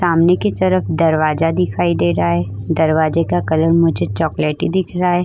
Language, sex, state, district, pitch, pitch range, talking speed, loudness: Hindi, female, Uttar Pradesh, Muzaffarnagar, 160 Hz, 150-175 Hz, 185 wpm, -16 LUFS